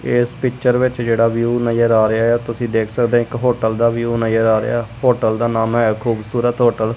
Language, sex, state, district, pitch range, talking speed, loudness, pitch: Punjabi, female, Punjab, Kapurthala, 115-120 Hz, 225 wpm, -17 LUFS, 115 Hz